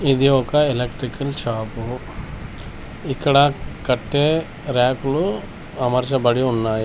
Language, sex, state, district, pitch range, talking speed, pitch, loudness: Telugu, male, Telangana, Komaram Bheem, 125-145 Hz, 80 wpm, 135 Hz, -20 LUFS